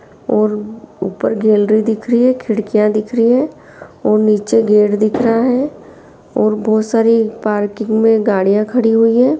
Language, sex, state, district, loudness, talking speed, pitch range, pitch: Hindi, female, Bihar, Lakhisarai, -14 LUFS, 160 wpm, 215-230 Hz, 220 Hz